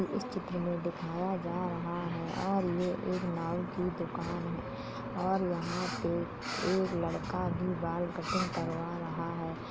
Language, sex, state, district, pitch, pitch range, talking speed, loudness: Hindi, male, Uttar Pradesh, Jalaun, 180 Hz, 175-185 Hz, 160 wpm, -35 LUFS